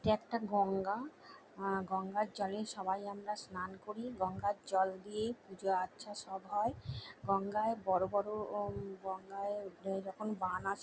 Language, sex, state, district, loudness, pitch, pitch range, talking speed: Bengali, female, West Bengal, Jalpaiguri, -38 LUFS, 195 Hz, 190-210 Hz, 145 wpm